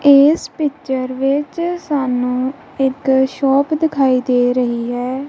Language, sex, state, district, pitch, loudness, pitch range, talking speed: Punjabi, female, Punjab, Kapurthala, 270 Hz, -16 LUFS, 255-285 Hz, 115 wpm